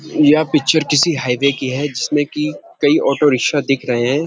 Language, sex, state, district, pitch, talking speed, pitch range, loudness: Hindi, male, Uttarakhand, Uttarkashi, 145 Hz, 195 wpm, 135-155 Hz, -16 LUFS